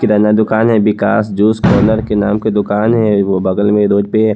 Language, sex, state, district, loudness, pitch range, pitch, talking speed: Hindi, male, Haryana, Charkhi Dadri, -12 LUFS, 105-110 Hz, 105 Hz, 220 wpm